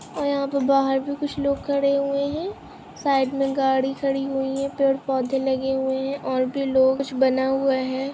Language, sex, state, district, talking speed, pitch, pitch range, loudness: Hindi, female, Chhattisgarh, Rajnandgaon, 205 wpm, 270 Hz, 265-280 Hz, -23 LUFS